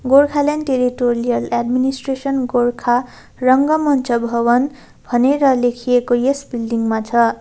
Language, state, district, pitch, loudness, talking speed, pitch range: Nepali, West Bengal, Darjeeling, 250 Hz, -17 LUFS, 95 wpm, 240-270 Hz